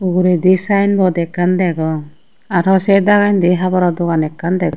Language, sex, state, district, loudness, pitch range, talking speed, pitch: Chakma, female, Tripura, Unakoti, -14 LUFS, 170-190 Hz, 140 wpm, 180 Hz